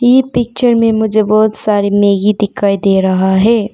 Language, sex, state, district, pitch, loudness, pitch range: Hindi, female, Arunachal Pradesh, Papum Pare, 215 Hz, -12 LUFS, 200-230 Hz